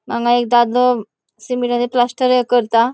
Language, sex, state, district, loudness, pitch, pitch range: Konkani, female, Goa, North and South Goa, -16 LUFS, 245 Hz, 240-250 Hz